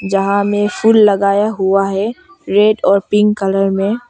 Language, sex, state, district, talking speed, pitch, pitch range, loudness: Hindi, female, Arunachal Pradesh, Longding, 160 wpm, 205 Hz, 195-215 Hz, -13 LUFS